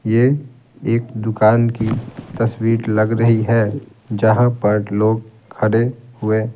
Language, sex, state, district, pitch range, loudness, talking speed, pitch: Hindi, male, Bihar, Patna, 110-120 Hz, -17 LUFS, 120 wpm, 115 Hz